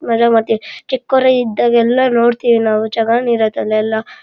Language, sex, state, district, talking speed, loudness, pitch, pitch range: Kannada, male, Karnataka, Shimoga, 140 wpm, -14 LUFS, 235 Hz, 220-240 Hz